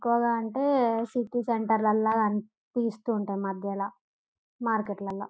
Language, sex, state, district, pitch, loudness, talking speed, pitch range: Telugu, female, Telangana, Karimnagar, 225 Hz, -28 LUFS, 115 wpm, 205-235 Hz